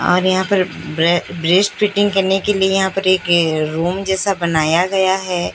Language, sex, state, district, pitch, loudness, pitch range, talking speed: Hindi, female, Odisha, Sambalpur, 185 Hz, -16 LUFS, 170-195 Hz, 175 wpm